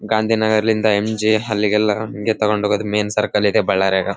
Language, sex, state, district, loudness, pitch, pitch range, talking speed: Kannada, male, Karnataka, Bellary, -17 LUFS, 105 Hz, 105-110 Hz, 100 wpm